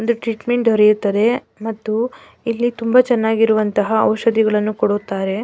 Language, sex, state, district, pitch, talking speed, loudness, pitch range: Kannada, female, Karnataka, Mysore, 220 Hz, 100 wpm, -17 LUFS, 215-235 Hz